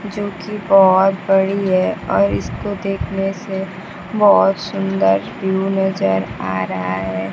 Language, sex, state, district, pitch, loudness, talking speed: Hindi, female, Bihar, Kaimur, 190 Hz, -17 LUFS, 130 wpm